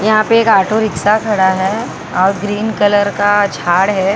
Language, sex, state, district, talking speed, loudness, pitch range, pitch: Hindi, female, Maharashtra, Mumbai Suburban, 185 wpm, -13 LUFS, 190-215 Hz, 205 Hz